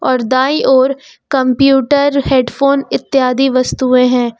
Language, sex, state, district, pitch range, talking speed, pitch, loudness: Hindi, female, Uttar Pradesh, Lucknow, 255-275 Hz, 110 wpm, 265 Hz, -12 LUFS